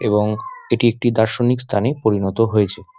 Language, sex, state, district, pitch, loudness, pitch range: Bengali, male, West Bengal, Dakshin Dinajpur, 115 Hz, -18 LUFS, 105-125 Hz